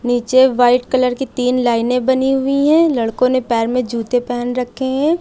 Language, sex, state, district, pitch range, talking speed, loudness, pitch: Hindi, female, Uttar Pradesh, Lucknow, 245-260 Hz, 195 wpm, -15 LUFS, 250 Hz